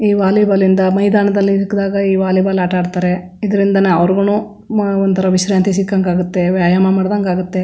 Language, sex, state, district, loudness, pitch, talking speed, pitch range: Kannada, female, Karnataka, Chamarajanagar, -14 LUFS, 195 Hz, 125 wpm, 185-200 Hz